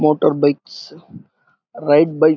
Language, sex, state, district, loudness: Telugu, male, Andhra Pradesh, Anantapur, -16 LUFS